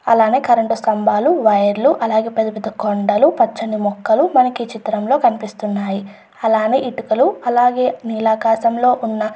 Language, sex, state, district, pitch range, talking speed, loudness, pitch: Telugu, female, Andhra Pradesh, Chittoor, 215-250 Hz, 95 wpm, -16 LUFS, 225 Hz